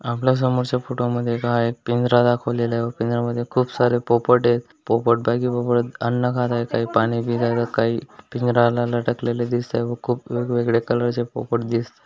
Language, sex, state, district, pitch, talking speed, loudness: Marathi, male, Maharashtra, Dhule, 120 Hz, 155 wpm, -21 LUFS